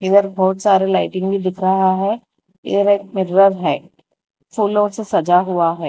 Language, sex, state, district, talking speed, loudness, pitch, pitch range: Hindi, female, Telangana, Hyderabad, 175 wpm, -17 LUFS, 190 Hz, 185-200 Hz